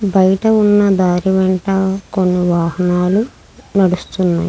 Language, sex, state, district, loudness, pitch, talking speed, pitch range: Telugu, female, Andhra Pradesh, Krishna, -14 LUFS, 190 Hz, 95 wpm, 180-195 Hz